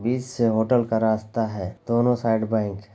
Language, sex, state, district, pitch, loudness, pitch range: Hindi, male, Bihar, Lakhisarai, 110 Hz, -23 LUFS, 110-120 Hz